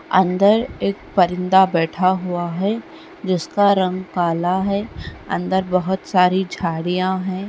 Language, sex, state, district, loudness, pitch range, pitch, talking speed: Hindi, female, Bihar, Jamui, -19 LUFS, 180-190 Hz, 185 Hz, 120 wpm